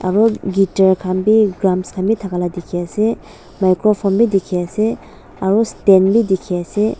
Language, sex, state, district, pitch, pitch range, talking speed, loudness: Nagamese, female, Nagaland, Dimapur, 195 Hz, 185-215 Hz, 155 wpm, -16 LUFS